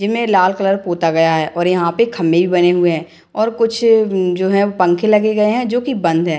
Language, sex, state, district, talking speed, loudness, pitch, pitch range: Hindi, female, Bihar, Madhepura, 255 wpm, -15 LUFS, 185 Hz, 170-220 Hz